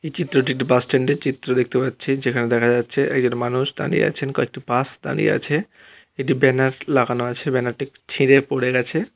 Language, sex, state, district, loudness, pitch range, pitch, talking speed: Bengali, male, West Bengal, Purulia, -20 LUFS, 125-140 Hz, 130 Hz, 190 wpm